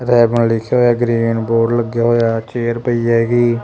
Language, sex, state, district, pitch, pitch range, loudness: Punjabi, male, Punjab, Kapurthala, 115 Hz, 115-120 Hz, -15 LUFS